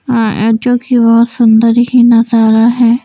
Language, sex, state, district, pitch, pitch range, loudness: Hindi, female, Bihar, Patna, 235 Hz, 225-240 Hz, -9 LUFS